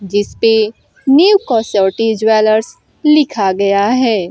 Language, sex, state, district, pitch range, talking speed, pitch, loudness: Hindi, female, Bihar, Kaimur, 205-265 Hz, 95 wpm, 220 Hz, -13 LUFS